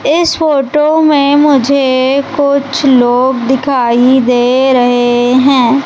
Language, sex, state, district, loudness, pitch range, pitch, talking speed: Hindi, female, Madhya Pradesh, Umaria, -9 LUFS, 250-285 Hz, 265 Hz, 105 wpm